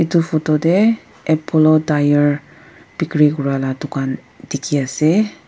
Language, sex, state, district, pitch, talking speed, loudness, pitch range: Nagamese, female, Nagaland, Dimapur, 155 Hz, 120 wpm, -17 LUFS, 145-165 Hz